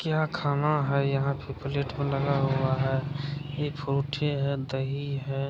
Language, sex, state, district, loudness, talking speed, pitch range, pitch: Hindi, male, Bihar, Madhepura, -28 LUFS, 185 wpm, 135-145 Hz, 140 Hz